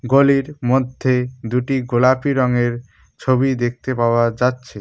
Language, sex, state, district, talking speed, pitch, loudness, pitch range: Bengali, male, West Bengal, Cooch Behar, 110 wpm, 125 Hz, -18 LUFS, 120-130 Hz